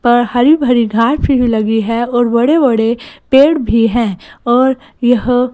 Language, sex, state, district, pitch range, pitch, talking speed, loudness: Hindi, female, Gujarat, Gandhinagar, 230-265 Hz, 240 Hz, 175 wpm, -12 LUFS